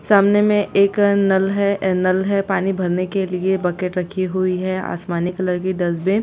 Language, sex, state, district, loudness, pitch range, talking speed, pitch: Hindi, female, Bihar, East Champaran, -19 LUFS, 185-200 Hz, 200 wpm, 190 Hz